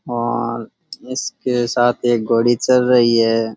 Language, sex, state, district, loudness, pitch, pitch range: Rajasthani, male, Rajasthan, Churu, -17 LUFS, 120 Hz, 115-125 Hz